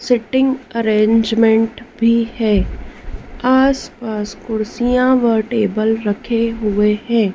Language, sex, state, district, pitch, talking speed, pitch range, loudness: Hindi, female, Madhya Pradesh, Dhar, 225 Hz, 90 wpm, 215-240 Hz, -16 LUFS